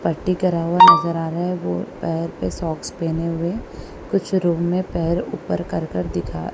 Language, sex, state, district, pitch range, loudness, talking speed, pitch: Hindi, female, Punjab, Kapurthala, 165-180 Hz, -20 LUFS, 200 wpm, 170 Hz